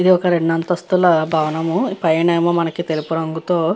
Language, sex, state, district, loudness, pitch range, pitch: Telugu, female, Andhra Pradesh, Guntur, -17 LUFS, 160-175 Hz, 170 Hz